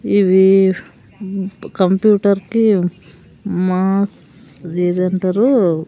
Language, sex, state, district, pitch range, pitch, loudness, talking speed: Telugu, female, Andhra Pradesh, Sri Satya Sai, 185-200 Hz, 190 Hz, -15 LUFS, 60 wpm